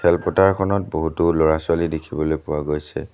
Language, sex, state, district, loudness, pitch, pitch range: Assamese, male, Assam, Sonitpur, -20 LUFS, 80 Hz, 80-85 Hz